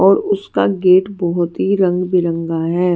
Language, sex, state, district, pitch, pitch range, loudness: Hindi, female, Bihar, West Champaran, 180 Hz, 175-195 Hz, -16 LUFS